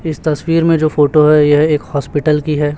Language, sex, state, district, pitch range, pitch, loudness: Hindi, male, Chhattisgarh, Raipur, 145-155 Hz, 150 Hz, -13 LUFS